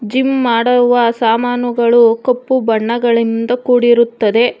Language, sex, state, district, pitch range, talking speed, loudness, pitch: Kannada, female, Karnataka, Bangalore, 230-245 Hz, 80 wpm, -13 LUFS, 240 Hz